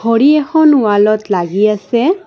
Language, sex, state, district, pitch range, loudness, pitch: Assamese, female, Assam, Kamrup Metropolitan, 210-300 Hz, -12 LUFS, 230 Hz